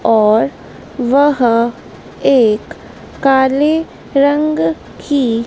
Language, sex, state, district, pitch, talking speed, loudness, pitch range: Hindi, female, Madhya Pradesh, Dhar, 265 Hz, 65 wpm, -14 LUFS, 230-285 Hz